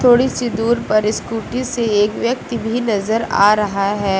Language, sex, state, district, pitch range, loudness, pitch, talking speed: Hindi, female, Uttar Pradesh, Lucknow, 210-240 Hz, -17 LUFS, 225 Hz, 185 wpm